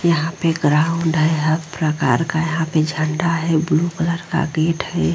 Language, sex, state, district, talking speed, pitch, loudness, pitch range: Hindi, female, Bihar, Vaishali, 200 wpm, 160 Hz, -19 LUFS, 155-165 Hz